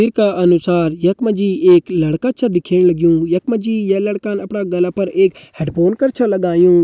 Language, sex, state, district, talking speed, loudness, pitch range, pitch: Hindi, male, Uttarakhand, Uttarkashi, 220 wpm, -15 LUFS, 175-205 Hz, 185 Hz